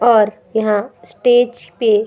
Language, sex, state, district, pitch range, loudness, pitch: Hindi, female, Uttar Pradesh, Budaun, 210-240 Hz, -16 LUFS, 220 Hz